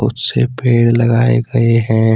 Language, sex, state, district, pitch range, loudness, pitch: Hindi, male, Jharkhand, Deoghar, 115-120 Hz, -13 LUFS, 115 Hz